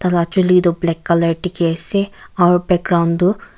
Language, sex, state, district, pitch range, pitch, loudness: Nagamese, female, Nagaland, Kohima, 170-180 Hz, 175 Hz, -16 LUFS